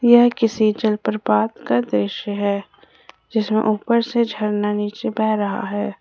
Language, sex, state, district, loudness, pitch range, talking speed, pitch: Hindi, female, Jharkhand, Ranchi, -20 LUFS, 205-220 Hz, 140 wpm, 210 Hz